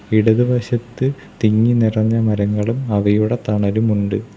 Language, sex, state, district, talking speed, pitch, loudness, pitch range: Malayalam, male, Kerala, Kollam, 70 wpm, 110 Hz, -17 LUFS, 105-120 Hz